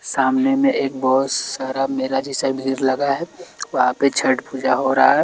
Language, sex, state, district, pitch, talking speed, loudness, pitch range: Hindi, male, Chhattisgarh, Raipur, 135 Hz, 195 wpm, -19 LUFS, 135-140 Hz